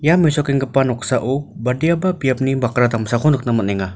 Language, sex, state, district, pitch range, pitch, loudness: Garo, male, Meghalaya, North Garo Hills, 120-150 Hz, 135 Hz, -18 LUFS